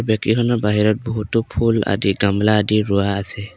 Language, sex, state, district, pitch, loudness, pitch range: Assamese, male, Assam, Kamrup Metropolitan, 105 Hz, -18 LUFS, 100-110 Hz